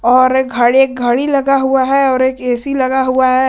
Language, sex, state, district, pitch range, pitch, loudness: Hindi, male, Jharkhand, Garhwa, 255-270 Hz, 260 Hz, -13 LUFS